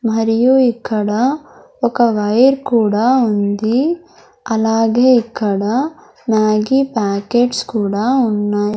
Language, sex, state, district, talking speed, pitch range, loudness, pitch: Telugu, male, Andhra Pradesh, Sri Satya Sai, 80 wpm, 215-255 Hz, -15 LUFS, 230 Hz